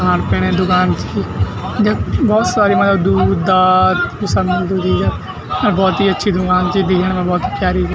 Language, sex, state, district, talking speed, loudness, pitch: Garhwali, male, Uttarakhand, Tehri Garhwal, 210 wpm, -15 LUFS, 180 Hz